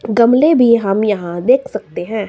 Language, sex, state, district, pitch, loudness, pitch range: Hindi, female, Himachal Pradesh, Shimla, 230 Hz, -13 LUFS, 205-250 Hz